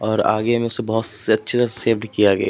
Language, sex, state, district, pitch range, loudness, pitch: Hindi, male, Uttar Pradesh, Etah, 110-115 Hz, -19 LUFS, 110 Hz